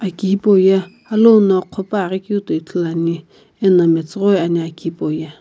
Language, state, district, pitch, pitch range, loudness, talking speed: Sumi, Nagaland, Kohima, 190 Hz, 165-200 Hz, -16 LUFS, 165 wpm